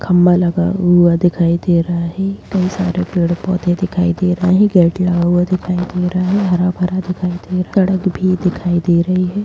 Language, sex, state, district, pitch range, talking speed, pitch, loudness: Kumaoni, female, Uttarakhand, Tehri Garhwal, 175-185 Hz, 205 wpm, 180 Hz, -15 LUFS